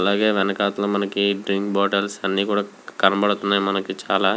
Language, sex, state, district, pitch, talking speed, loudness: Telugu, male, Andhra Pradesh, Visakhapatnam, 100 Hz, 150 wpm, -21 LUFS